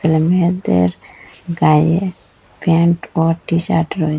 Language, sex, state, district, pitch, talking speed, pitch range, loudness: Bengali, female, Assam, Hailakandi, 165 Hz, 100 wpm, 155-170 Hz, -16 LUFS